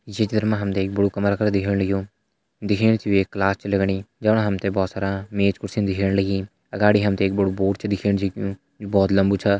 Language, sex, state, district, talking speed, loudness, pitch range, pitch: Hindi, male, Uttarakhand, Tehri Garhwal, 245 wpm, -22 LUFS, 95-105 Hz, 100 Hz